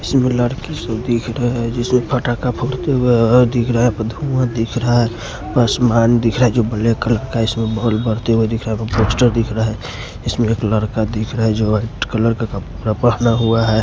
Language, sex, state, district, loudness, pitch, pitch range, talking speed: Hindi, male, Himachal Pradesh, Shimla, -17 LUFS, 115 Hz, 110-120 Hz, 210 wpm